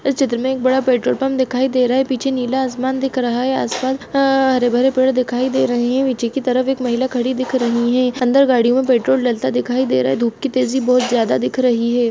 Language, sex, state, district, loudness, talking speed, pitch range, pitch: Hindi, female, Chhattisgarh, Bastar, -17 LUFS, 250 wpm, 245-265 Hz, 255 Hz